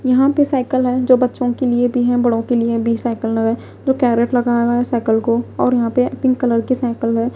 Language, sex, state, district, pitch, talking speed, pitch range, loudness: Hindi, female, Punjab, Pathankot, 245 Hz, 255 wpm, 235-255 Hz, -17 LUFS